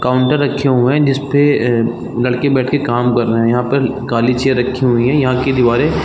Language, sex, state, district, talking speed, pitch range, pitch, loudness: Hindi, male, Chhattisgarh, Bilaspur, 230 wpm, 120-140 Hz, 125 Hz, -14 LUFS